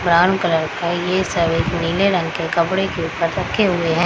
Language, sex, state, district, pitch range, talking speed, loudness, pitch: Hindi, female, Bihar, Samastipur, 165-185 Hz, 250 wpm, -18 LUFS, 170 Hz